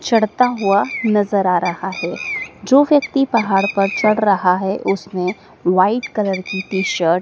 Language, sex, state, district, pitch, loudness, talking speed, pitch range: Hindi, female, Madhya Pradesh, Dhar, 195 Hz, -17 LUFS, 160 wpm, 185-220 Hz